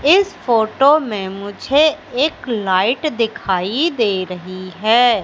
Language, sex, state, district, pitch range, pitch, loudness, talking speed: Hindi, female, Madhya Pradesh, Katni, 195-295 Hz, 230 Hz, -17 LUFS, 115 wpm